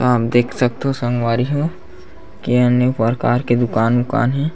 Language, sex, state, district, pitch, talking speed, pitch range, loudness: Chhattisgarhi, male, Chhattisgarh, Bastar, 125 Hz, 185 wpm, 120-130 Hz, -17 LUFS